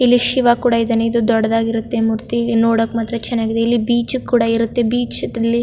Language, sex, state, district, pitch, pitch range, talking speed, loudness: Kannada, female, Karnataka, Chamarajanagar, 230 Hz, 230-240 Hz, 180 wpm, -16 LUFS